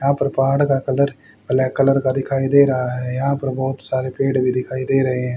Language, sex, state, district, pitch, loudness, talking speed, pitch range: Hindi, male, Haryana, Charkhi Dadri, 135 Hz, -19 LUFS, 245 wpm, 130-135 Hz